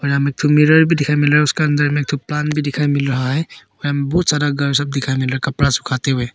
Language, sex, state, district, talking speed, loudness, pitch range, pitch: Hindi, male, Arunachal Pradesh, Papum Pare, 285 wpm, -16 LUFS, 140-150 Hz, 145 Hz